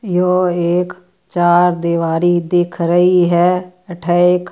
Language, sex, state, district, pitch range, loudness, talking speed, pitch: Marwari, female, Rajasthan, Churu, 175-180 Hz, -14 LUFS, 120 wpm, 175 Hz